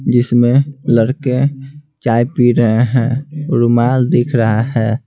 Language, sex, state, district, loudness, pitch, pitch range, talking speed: Hindi, male, Bihar, Patna, -14 LUFS, 120 Hz, 120-135 Hz, 120 wpm